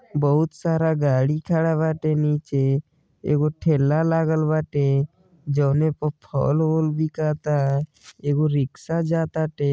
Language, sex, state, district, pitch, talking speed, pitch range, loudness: Bhojpuri, male, Uttar Pradesh, Deoria, 155 Hz, 110 wpm, 145-160 Hz, -22 LUFS